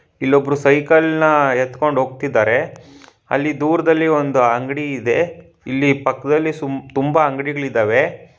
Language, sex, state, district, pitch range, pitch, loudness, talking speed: Kannada, male, Karnataka, Bangalore, 135-150 Hz, 140 Hz, -17 LUFS, 105 wpm